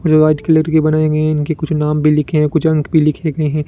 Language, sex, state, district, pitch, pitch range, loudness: Hindi, male, Rajasthan, Bikaner, 155 Hz, 150-155 Hz, -14 LUFS